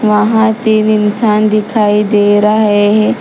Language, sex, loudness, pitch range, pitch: Hindi, female, -10 LUFS, 210-215 Hz, 215 Hz